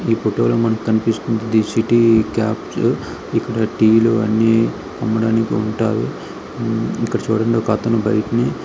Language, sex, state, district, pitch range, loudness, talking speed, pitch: Telugu, male, Andhra Pradesh, Srikakulam, 110-115 Hz, -17 LUFS, 125 wpm, 115 Hz